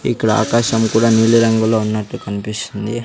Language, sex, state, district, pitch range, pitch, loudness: Telugu, male, Andhra Pradesh, Sri Satya Sai, 105-115 Hz, 110 Hz, -16 LUFS